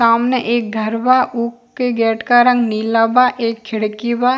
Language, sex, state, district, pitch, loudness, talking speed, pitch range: Bhojpuri, female, Bihar, East Champaran, 235 Hz, -16 LUFS, 190 wpm, 225-245 Hz